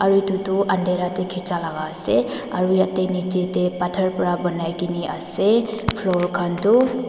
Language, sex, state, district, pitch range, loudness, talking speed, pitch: Nagamese, female, Nagaland, Dimapur, 175-195 Hz, -21 LUFS, 145 wpm, 185 Hz